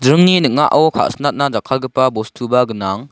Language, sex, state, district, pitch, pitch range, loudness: Garo, male, Meghalaya, South Garo Hills, 130 Hz, 120-145 Hz, -15 LUFS